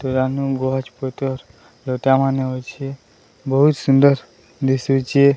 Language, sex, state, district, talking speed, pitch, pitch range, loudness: Odia, male, Odisha, Sambalpur, 90 wpm, 135 Hz, 130-135 Hz, -19 LUFS